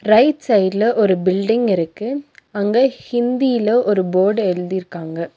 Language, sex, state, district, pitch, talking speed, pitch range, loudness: Tamil, female, Tamil Nadu, Nilgiris, 215 Hz, 125 wpm, 185-240 Hz, -17 LUFS